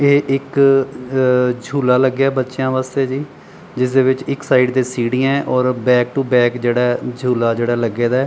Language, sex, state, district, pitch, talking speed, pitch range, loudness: Punjabi, male, Punjab, Pathankot, 130 Hz, 175 wpm, 125-135 Hz, -16 LUFS